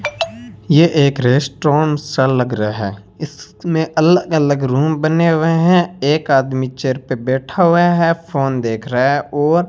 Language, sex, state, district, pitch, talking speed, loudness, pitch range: Hindi, male, Rajasthan, Bikaner, 150 Hz, 165 wpm, -15 LUFS, 130-165 Hz